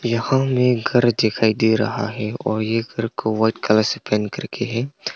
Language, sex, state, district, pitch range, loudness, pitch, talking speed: Hindi, male, Arunachal Pradesh, Longding, 110-120 Hz, -20 LUFS, 115 Hz, 195 wpm